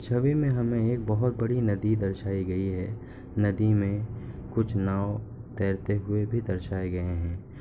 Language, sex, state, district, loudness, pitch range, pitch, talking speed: Hindi, male, Bihar, Kishanganj, -28 LUFS, 95-120 Hz, 105 Hz, 160 wpm